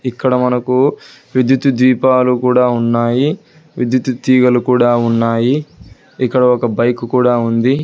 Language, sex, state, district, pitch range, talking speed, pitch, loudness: Telugu, male, Telangana, Hyderabad, 120-130 Hz, 115 wpm, 125 Hz, -14 LUFS